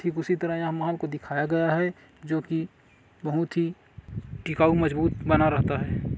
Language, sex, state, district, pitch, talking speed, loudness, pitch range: Hindi, male, Chhattisgarh, Kabirdham, 160 Hz, 165 wpm, -26 LUFS, 150-165 Hz